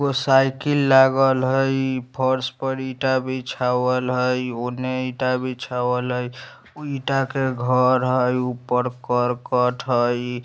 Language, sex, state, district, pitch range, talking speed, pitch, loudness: Bajjika, male, Bihar, Vaishali, 125-130 Hz, 125 wpm, 130 Hz, -21 LUFS